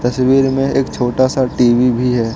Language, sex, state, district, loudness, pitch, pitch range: Hindi, male, Arunachal Pradesh, Lower Dibang Valley, -14 LUFS, 125 Hz, 120-130 Hz